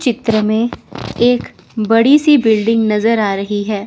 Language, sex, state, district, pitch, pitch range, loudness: Hindi, female, Chandigarh, Chandigarh, 225 Hz, 215-240 Hz, -14 LUFS